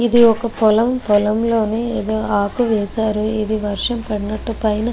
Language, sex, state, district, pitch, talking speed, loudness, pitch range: Telugu, female, Andhra Pradesh, Guntur, 220 Hz, 160 wpm, -18 LUFS, 210-230 Hz